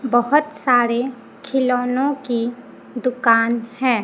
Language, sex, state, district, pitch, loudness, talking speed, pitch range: Hindi, female, Chhattisgarh, Raipur, 250 Hz, -19 LUFS, 90 wpm, 240-265 Hz